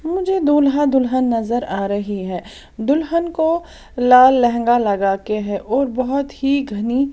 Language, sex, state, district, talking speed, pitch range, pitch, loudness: Hindi, female, Odisha, Sambalpur, 150 wpm, 215-280 Hz, 255 Hz, -17 LUFS